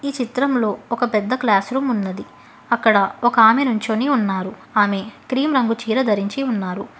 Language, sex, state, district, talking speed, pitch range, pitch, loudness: Telugu, female, Telangana, Hyderabad, 145 wpm, 205-255 Hz, 230 Hz, -19 LUFS